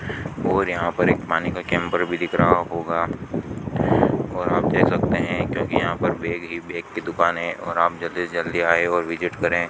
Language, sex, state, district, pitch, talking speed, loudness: Hindi, male, Rajasthan, Bikaner, 85 Hz, 210 wpm, -22 LUFS